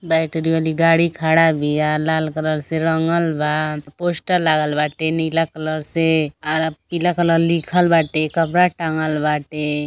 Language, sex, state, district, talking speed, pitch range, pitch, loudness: Bhojpuri, female, Uttar Pradesh, Gorakhpur, 160 wpm, 155-165 Hz, 160 Hz, -18 LUFS